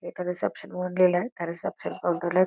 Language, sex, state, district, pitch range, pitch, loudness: Marathi, female, Karnataka, Belgaum, 175-180 Hz, 180 Hz, -28 LUFS